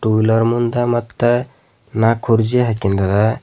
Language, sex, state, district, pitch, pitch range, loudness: Kannada, male, Karnataka, Bidar, 115 Hz, 110-120 Hz, -16 LUFS